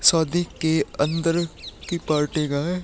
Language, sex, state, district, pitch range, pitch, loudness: Hindi, male, Uttar Pradesh, Muzaffarnagar, 150-170 Hz, 165 Hz, -23 LUFS